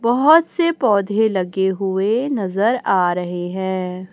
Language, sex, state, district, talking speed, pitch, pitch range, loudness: Hindi, female, Chhattisgarh, Raipur, 130 wpm, 195 Hz, 185-240 Hz, -18 LUFS